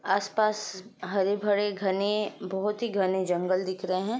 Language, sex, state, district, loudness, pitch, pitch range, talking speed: Hindi, female, Bihar, Jamui, -28 LUFS, 195 Hz, 190-210 Hz, 145 wpm